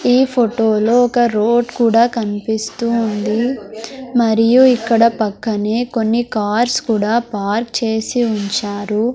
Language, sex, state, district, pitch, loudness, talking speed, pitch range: Telugu, female, Andhra Pradesh, Sri Satya Sai, 230 Hz, -16 LUFS, 110 wpm, 215-240 Hz